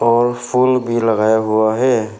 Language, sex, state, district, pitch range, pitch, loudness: Hindi, male, Arunachal Pradesh, Papum Pare, 110-120 Hz, 115 Hz, -15 LUFS